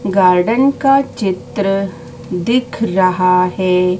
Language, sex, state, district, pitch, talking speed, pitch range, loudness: Hindi, female, Madhya Pradesh, Dhar, 190 Hz, 90 wpm, 180-225 Hz, -14 LUFS